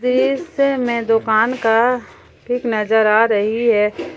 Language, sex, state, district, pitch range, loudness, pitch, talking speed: Hindi, female, Jharkhand, Palamu, 220-250 Hz, -16 LUFS, 230 Hz, 130 wpm